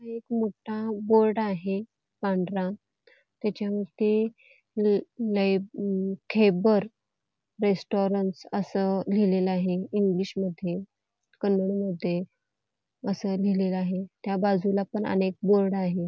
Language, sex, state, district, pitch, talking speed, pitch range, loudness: Marathi, female, Karnataka, Belgaum, 195 Hz, 90 wpm, 190-210 Hz, -27 LUFS